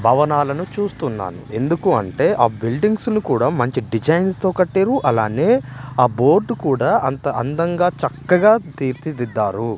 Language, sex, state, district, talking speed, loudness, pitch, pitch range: Telugu, male, Andhra Pradesh, Manyam, 125 wpm, -18 LUFS, 145 Hz, 120-185 Hz